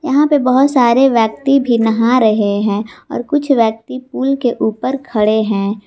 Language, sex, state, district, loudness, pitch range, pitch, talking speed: Hindi, female, Jharkhand, Garhwa, -14 LUFS, 220-270 Hz, 245 Hz, 175 wpm